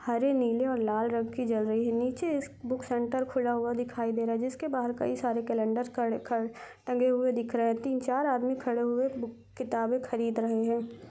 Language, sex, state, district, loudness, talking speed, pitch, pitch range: Hindi, female, Chhattisgarh, Rajnandgaon, -30 LUFS, 210 wpm, 240 Hz, 230-255 Hz